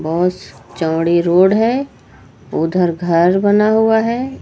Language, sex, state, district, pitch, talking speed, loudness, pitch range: Hindi, female, Uttar Pradesh, Lucknow, 180 Hz, 120 wpm, -15 LUFS, 165-215 Hz